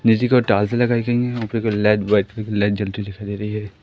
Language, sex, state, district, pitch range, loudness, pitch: Hindi, male, Madhya Pradesh, Katni, 105-115 Hz, -20 LUFS, 105 Hz